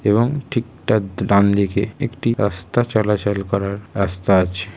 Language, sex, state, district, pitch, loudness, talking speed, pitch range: Bengali, male, West Bengal, Kolkata, 100 Hz, -19 LUFS, 140 wpm, 100-115 Hz